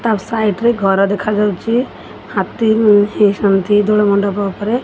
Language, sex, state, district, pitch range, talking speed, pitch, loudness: Odia, female, Odisha, Khordha, 200-220 Hz, 100 wpm, 210 Hz, -14 LUFS